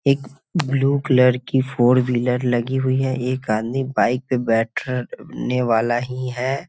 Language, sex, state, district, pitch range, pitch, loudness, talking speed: Hindi, male, Bihar, Muzaffarpur, 120-130 Hz, 125 Hz, -20 LUFS, 170 wpm